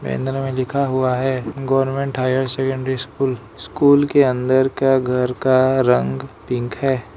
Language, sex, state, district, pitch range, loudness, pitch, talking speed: Hindi, male, Arunachal Pradesh, Lower Dibang Valley, 125-135 Hz, -18 LUFS, 130 Hz, 150 wpm